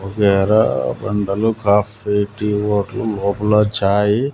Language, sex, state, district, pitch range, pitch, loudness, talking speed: Telugu, male, Andhra Pradesh, Sri Satya Sai, 100-105 Hz, 105 Hz, -17 LUFS, 125 wpm